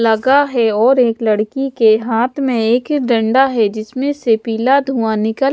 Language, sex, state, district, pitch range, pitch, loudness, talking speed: Hindi, female, Odisha, Sambalpur, 225-270 Hz, 235 Hz, -14 LUFS, 175 wpm